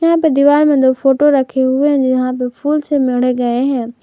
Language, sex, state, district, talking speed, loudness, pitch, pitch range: Hindi, female, Jharkhand, Garhwa, 240 wpm, -13 LUFS, 265 Hz, 255-290 Hz